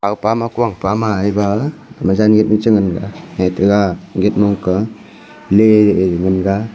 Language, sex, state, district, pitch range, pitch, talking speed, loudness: Wancho, male, Arunachal Pradesh, Longding, 95-110 Hz, 105 Hz, 160 wpm, -14 LUFS